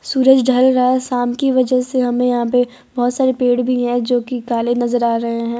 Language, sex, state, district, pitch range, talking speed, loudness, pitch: Hindi, female, Gujarat, Valsad, 245-255 Hz, 245 wpm, -16 LUFS, 245 Hz